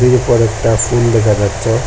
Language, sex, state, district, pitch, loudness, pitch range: Bengali, male, Assam, Hailakandi, 115 Hz, -13 LUFS, 110-120 Hz